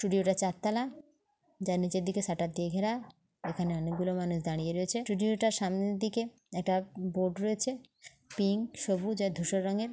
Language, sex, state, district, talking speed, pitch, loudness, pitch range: Bengali, female, West Bengal, North 24 Parganas, 155 wpm, 195 Hz, -33 LUFS, 185-220 Hz